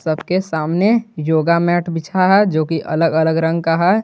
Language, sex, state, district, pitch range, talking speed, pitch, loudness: Hindi, male, Jharkhand, Garhwa, 160-185 Hz, 195 wpm, 165 Hz, -16 LUFS